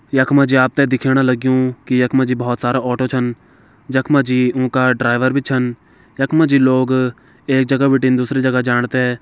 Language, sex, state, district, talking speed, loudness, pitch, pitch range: Garhwali, male, Uttarakhand, Tehri Garhwal, 230 wpm, -16 LUFS, 130 Hz, 125-130 Hz